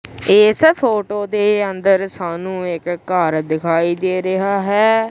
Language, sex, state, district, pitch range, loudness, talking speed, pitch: Punjabi, female, Punjab, Kapurthala, 175-205 Hz, -16 LUFS, 130 wpm, 190 Hz